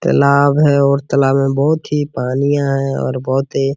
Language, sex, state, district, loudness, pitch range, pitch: Hindi, male, Bihar, Araria, -15 LUFS, 135-145 Hz, 140 Hz